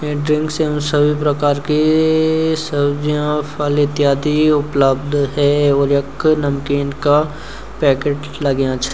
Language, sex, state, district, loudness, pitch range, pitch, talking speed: Garhwali, male, Uttarakhand, Uttarkashi, -16 LUFS, 140-150 Hz, 145 Hz, 115 wpm